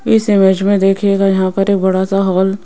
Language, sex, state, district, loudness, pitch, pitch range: Hindi, female, Rajasthan, Jaipur, -13 LUFS, 195 Hz, 190-200 Hz